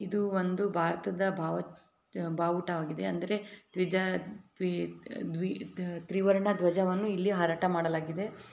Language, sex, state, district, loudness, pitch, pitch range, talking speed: Kannada, female, Karnataka, Bellary, -32 LUFS, 185 Hz, 170-200 Hz, 100 wpm